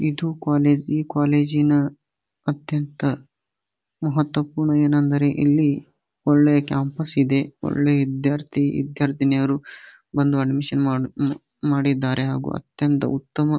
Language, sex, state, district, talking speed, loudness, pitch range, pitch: Kannada, male, Karnataka, Bijapur, 95 wpm, -21 LUFS, 140-150 Hz, 145 Hz